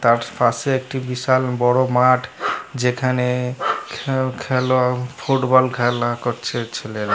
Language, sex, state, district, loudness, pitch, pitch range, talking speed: Bengali, male, West Bengal, North 24 Parganas, -20 LUFS, 125 Hz, 120-130 Hz, 125 wpm